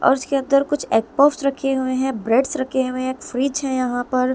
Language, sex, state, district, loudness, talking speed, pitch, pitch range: Hindi, female, Delhi, New Delhi, -20 LUFS, 235 wpm, 265 Hz, 255-275 Hz